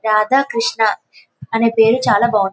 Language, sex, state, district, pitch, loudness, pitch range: Telugu, female, Telangana, Karimnagar, 225 Hz, -15 LUFS, 215-235 Hz